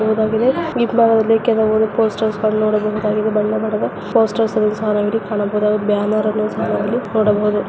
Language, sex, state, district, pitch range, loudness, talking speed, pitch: Kannada, female, Karnataka, Raichur, 210-220 Hz, -17 LUFS, 60 wpm, 215 Hz